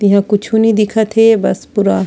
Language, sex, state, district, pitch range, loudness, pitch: Chhattisgarhi, female, Chhattisgarh, Sarguja, 200-220 Hz, -12 LUFS, 210 Hz